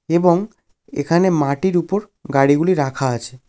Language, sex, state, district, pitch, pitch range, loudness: Bengali, male, West Bengal, Jalpaiguri, 165 Hz, 140-185 Hz, -18 LUFS